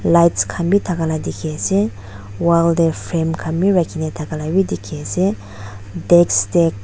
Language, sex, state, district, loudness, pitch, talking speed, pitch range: Nagamese, female, Nagaland, Dimapur, -17 LUFS, 165 Hz, 150 wpm, 155-175 Hz